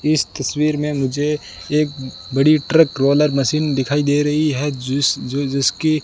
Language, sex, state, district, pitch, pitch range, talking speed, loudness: Hindi, male, Rajasthan, Bikaner, 145 Hz, 135-150 Hz, 150 wpm, -18 LUFS